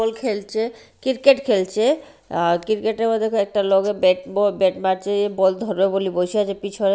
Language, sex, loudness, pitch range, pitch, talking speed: Bengali, female, -20 LUFS, 190-220 Hz, 205 Hz, 165 wpm